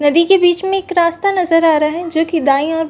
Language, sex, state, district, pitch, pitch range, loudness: Hindi, female, Chhattisgarh, Rajnandgaon, 335 Hz, 320-360 Hz, -14 LUFS